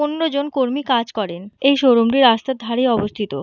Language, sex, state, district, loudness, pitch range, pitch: Bengali, female, West Bengal, Purulia, -18 LUFS, 225-275 Hz, 245 Hz